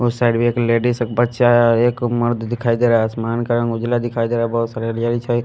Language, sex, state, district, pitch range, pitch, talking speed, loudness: Hindi, male, Haryana, Rohtak, 115-120 Hz, 120 Hz, 255 wpm, -18 LUFS